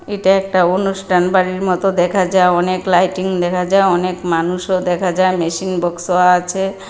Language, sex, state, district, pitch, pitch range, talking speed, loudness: Bengali, female, Tripura, West Tripura, 185 Hz, 180-190 Hz, 155 wpm, -15 LUFS